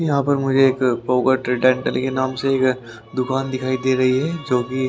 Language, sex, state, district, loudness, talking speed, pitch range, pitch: Hindi, male, Haryana, Rohtak, -19 LUFS, 210 wpm, 130-135 Hz, 130 Hz